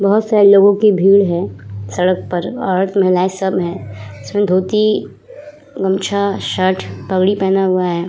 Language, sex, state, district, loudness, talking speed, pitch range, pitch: Hindi, female, Uttar Pradesh, Muzaffarnagar, -15 LUFS, 140 wpm, 180-200 Hz, 190 Hz